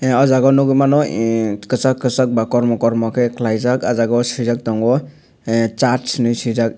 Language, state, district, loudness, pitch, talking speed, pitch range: Kokborok, Tripura, Dhalai, -16 LUFS, 120 Hz, 195 wpm, 115-130 Hz